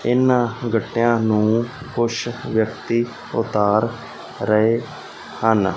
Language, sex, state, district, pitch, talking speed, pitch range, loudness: Punjabi, male, Punjab, Fazilka, 115 Hz, 85 wpm, 110-120 Hz, -20 LUFS